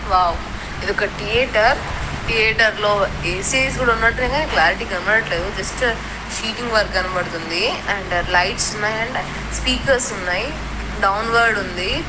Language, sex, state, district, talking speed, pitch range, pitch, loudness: Telugu, female, Telangana, Nalgonda, 120 wpm, 180-230 Hz, 205 Hz, -19 LUFS